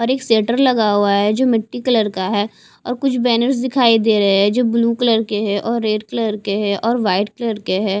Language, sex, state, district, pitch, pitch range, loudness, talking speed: Hindi, female, Haryana, Charkhi Dadri, 225 Hz, 205-240 Hz, -17 LUFS, 245 wpm